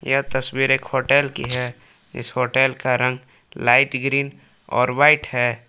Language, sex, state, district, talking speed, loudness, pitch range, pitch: Hindi, male, Jharkhand, Palamu, 160 wpm, -19 LUFS, 125-135 Hz, 130 Hz